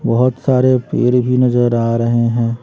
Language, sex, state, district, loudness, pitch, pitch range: Hindi, female, Bihar, West Champaran, -14 LUFS, 120 Hz, 115-125 Hz